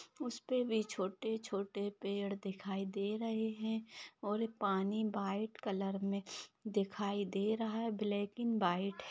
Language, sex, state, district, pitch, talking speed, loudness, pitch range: Hindi, female, Maharashtra, Aurangabad, 205 Hz, 145 wpm, -39 LUFS, 200-220 Hz